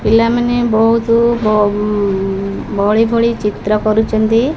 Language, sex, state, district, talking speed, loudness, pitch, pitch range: Odia, female, Odisha, Khordha, 105 wpm, -14 LUFS, 220 Hz, 210-230 Hz